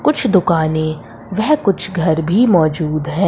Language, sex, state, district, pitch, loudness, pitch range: Hindi, female, Madhya Pradesh, Umaria, 170 Hz, -15 LUFS, 155-200 Hz